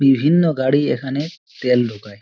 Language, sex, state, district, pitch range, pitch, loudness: Bengali, male, West Bengal, Dakshin Dinajpur, 125-150 Hz, 135 Hz, -18 LUFS